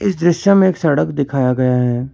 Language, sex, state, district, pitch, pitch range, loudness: Hindi, male, Karnataka, Bangalore, 145 Hz, 130-185 Hz, -15 LUFS